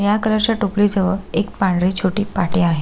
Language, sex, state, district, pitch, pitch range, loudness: Marathi, female, Maharashtra, Solapur, 200 Hz, 185-205 Hz, -18 LUFS